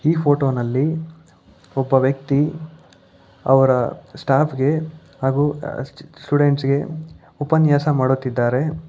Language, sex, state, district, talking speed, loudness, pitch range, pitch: Kannada, male, Karnataka, Bangalore, 100 wpm, -19 LUFS, 135-155 Hz, 145 Hz